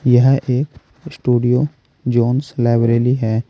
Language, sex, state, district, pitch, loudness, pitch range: Hindi, male, Uttar Pradesh, Saharanpur, 125 Hz, -16 LUFS, 120-135 Hz